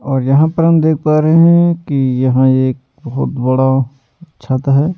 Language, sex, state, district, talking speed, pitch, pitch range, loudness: Hindi, male, Delhi, New Delhi, 180 wpm, 135 Hz, 130-160 Hz, -13 LUFS